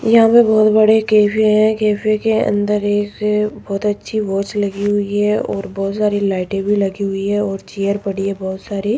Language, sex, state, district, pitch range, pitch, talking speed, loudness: Hindi, female, Rajasthan, Jaipur, 200-215 Hz, 205 Hz, 200 wpm, -16 LUFS